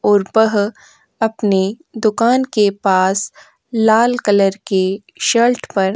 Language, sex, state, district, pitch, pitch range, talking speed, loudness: Hindi, female, Uttar Pradesh, Jyotiba Phule Nagar, 210 Hz, 195-230 Hz, 120 wpm, -16 LUFS